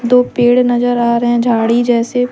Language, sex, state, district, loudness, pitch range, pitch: Hindi, female, Jharkhand, Deoghar, -12 LUFS, 235-245 Hz, 240 Hz